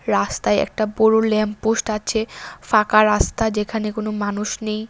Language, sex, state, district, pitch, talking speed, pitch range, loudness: Bengali, female, Tripura, West Tripura, 215 Hz, 145 wpm, 210-220 Hz, -19 LUFS